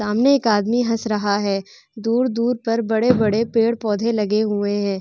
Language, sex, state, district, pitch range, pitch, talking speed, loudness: Hindi, female, Bihar, Vaishali, 210-230 Hz, 220 Hz, 155 wpm, -19 LUFS